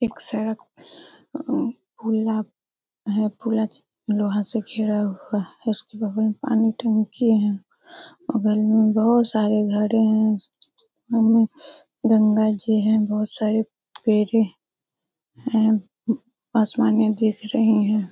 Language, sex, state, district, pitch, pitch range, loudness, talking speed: Hindi, female, Bihar, Darbhanga, 220 Hz, 215-230 Hz, -22 LUFS, 120 wpm